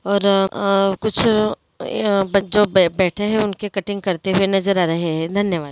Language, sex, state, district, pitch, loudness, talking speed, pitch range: Hindi, female, Andhra Pradesh, Krishna, 195 Hz, -18 LUFS, 170 wpm, 190-205 Hz